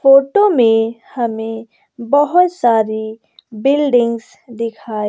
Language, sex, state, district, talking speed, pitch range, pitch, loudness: Hindi, female, Bihar, West Champaran, 80 wpm, 225-275 Hz, 235 Hz, -15 LUFS